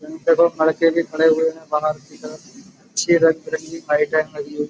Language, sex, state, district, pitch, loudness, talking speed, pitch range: Hindi, male, Uttar Pradesh, Budaun, 160 Hz, -19 LUFS, 215 wpm, 155-165 Hz